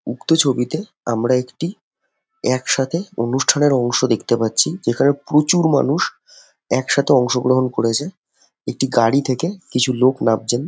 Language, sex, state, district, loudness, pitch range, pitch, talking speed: Bengali, male, West Bengal, Jhargram, -18 LUFS, 125-165 Hz, 135 Hz, 130 wpm